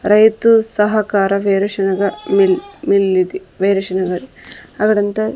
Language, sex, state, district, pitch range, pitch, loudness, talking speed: Telugu, female, Andhra Pradesh, Sri Satya Sai, 195-220 Hz, 205 Hz, -15 LUFS, 110 wpm